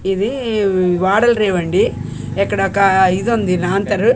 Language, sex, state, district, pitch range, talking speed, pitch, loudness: Telugu, female, Andhra Pradesh, Manyam, 180-205 Hz, 115 wpm, 195 Hz, -15 LUFS